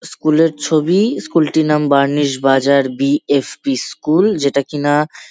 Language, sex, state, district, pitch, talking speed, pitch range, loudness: Bengali, male, West Bengal, Jalpaiguri, 145 Hz, 160 wpm, 140-155 Hz, -15 LUFS